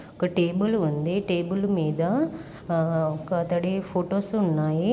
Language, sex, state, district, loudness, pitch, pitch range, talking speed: Telugu, female, Andhra Pradesh, Srikakulam, -25 LUFS, 175 Hz, 160-195 Hz, 110 wpm